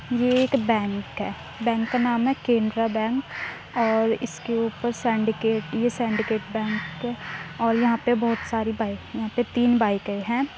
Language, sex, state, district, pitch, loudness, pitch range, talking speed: Hindi, female, Uttar Pradesh, Muzaffarnagar, 230 Hz, -24 LUFS, 220-240 Hz, 160 wpm